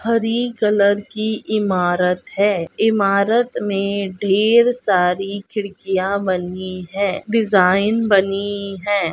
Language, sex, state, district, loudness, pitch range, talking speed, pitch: Hindi, male, Bihar, Jahanabad, -18 LUFS, 190-215 Hz, 100 wpm, 200 Hz